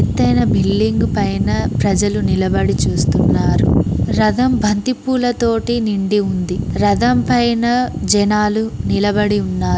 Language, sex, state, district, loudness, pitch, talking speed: Telugu, female, Telangana, Mahabubabad, -16 LUFS, 205 Hz, 100 wpm